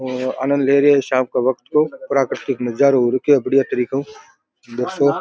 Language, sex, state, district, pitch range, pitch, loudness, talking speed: Rajasthani, male, Rajasthan, Nagaur, 125-140 Hz, 135 Hz, -18 LUFS, 205 wpm